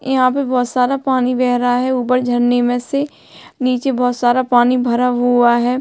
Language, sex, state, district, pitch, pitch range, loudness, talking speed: Hindi, female, Uttarakhand, Tehri Garhwal, 250 Hz, 245-255 Hz, -15 LUFS, 195 wpm